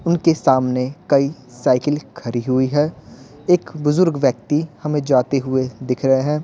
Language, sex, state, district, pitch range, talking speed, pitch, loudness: Hindi, male, Bihar, Patna, 130-150 Hz, 150 wpm, 140 Hz, -19 LUFS